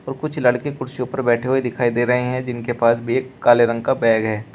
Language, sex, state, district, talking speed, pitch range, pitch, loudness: Hindi, male, Uttar Pradesh, Shamli, 265 wpm, 120-130 Hz, 125 Hz, -19 LUFS